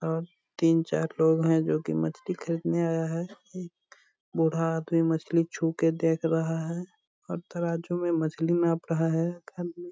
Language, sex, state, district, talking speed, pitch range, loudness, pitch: Hindi, male, Bihar, Purnia, 180 wpm, 160-170 Hz, -28 LUFS, 165 Hz